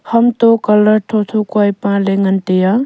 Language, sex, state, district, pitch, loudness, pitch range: Wancho, female, Arunachal Pradesh, Longding, 210 Hz, -13 LUFS, 200-225 Hz